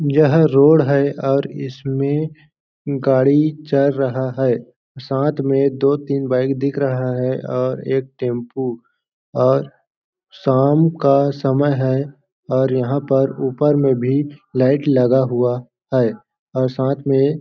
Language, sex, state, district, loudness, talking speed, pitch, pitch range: Hindi, male, Chhattisgarh, Balrampur, -18 LUFS, 130 wpm, 135 Hz, 130-145 Hz